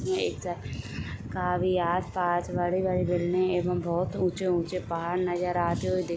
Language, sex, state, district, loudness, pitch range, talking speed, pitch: Hindi, female, Jharkhand, Sahebganj, -28 LUFS, 170-180 Hz, 185 wpm, 180 Hz